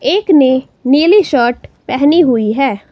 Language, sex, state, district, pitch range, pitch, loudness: Hindi, female, Himachal Pradesh, Shimla, 250-320 Hz, 275 Hz, -11 LUFS